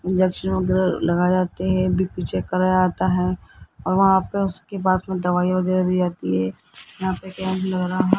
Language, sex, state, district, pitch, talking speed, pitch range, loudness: Hindi, male, Rajasthan, Jaipur, 185 Hz, 175 wpm, 180-185 Hz, -21 LUFS